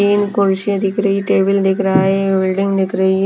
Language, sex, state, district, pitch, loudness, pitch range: Hindi, female, Himachal Pradesh, Shimla, 195 Hz, -15 LUFS, 190-200 Hz